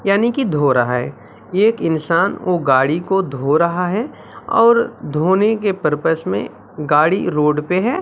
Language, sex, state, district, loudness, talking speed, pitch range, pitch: Hindi, male, Bihar, Katihar, -17 LUFS, 165 wpm, 150-200 Hz, 170 Hz